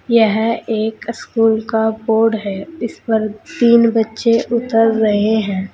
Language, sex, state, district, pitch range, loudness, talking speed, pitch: Hindi, female, Uttar Pradesh, Saharanpur, 220-230 Hz, -16 LUFS, 135 wpm, 225 Hz